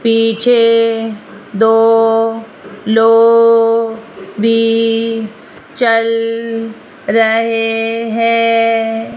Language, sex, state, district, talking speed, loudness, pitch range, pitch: Hindi, female, Rajasthan, Jaipur, 45 wpm, -12 LUFS, 225-230 Hz, 225 Hz